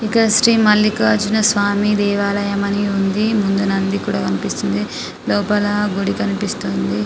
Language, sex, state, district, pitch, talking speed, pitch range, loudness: Telugu, female, Telangana, Karimnagar, 205 Hz, 120 wpm, 195-210 Hz, -17 LUFS